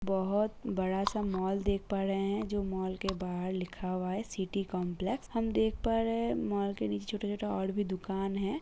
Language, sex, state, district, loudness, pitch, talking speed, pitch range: Hindi, female, Uttar Pradesh, Jalaun, -34 LUFS, 195 Hz, 215 wpm, 190-210 Hz